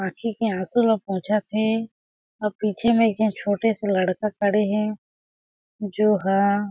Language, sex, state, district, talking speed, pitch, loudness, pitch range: Chhattisgarhi, female, Chhattisgarh, Jashpur, 160 wpm, 210 Hz, -22 LUFS, 200-220 Hz